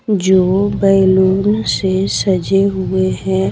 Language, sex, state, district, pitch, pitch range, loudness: Hindi, female, Bihar, Patna, 190 Hz, 185-195 Hz, -14 LUFS